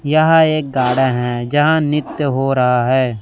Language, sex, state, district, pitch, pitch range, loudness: Hindi, male, Chhattisgarh, Raipur, 135 Hz, 125-150 Hz, -15 LUFS